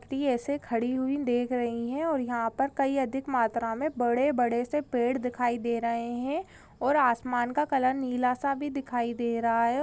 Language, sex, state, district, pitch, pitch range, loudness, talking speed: Hindi, female, Maharashtra, Sindhudurg, 250 Hz, 235-275 Hz, -28 LUFS, 195 wpm